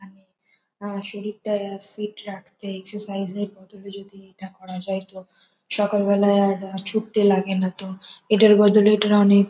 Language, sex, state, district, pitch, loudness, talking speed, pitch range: Bengali, female, West Bengal, North 24 Parganas, 200 Hz, -21 LUFS, 140 wpm, 195-205 Hz